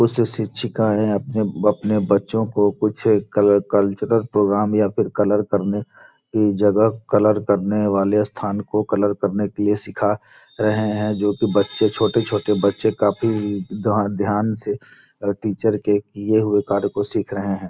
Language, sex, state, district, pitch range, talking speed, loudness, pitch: Hindi, male, Bihar, Gopalganj, 100-105 Hz, 160 wpm, -20 LUFS, 105 Hz